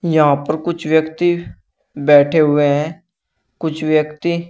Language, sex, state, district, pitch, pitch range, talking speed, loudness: Hindi, male, Uttar Pradesh, Shamli, 160 Hz, 150-170 Hz, 120 wpm, -16 LUFS